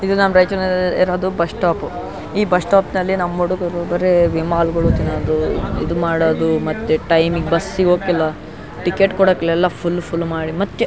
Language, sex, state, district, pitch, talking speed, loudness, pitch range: Kannada, male, Karnataka, Raichur, 175 Hz, 150 wpm, -17 LUFS, 165-185 Hz